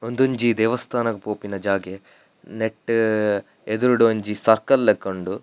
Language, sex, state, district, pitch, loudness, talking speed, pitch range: Tulu, male, Karnataka, Dakshina Kannada, 110 Hz, -21 LUFS, 100 wpm, 100-115 Hz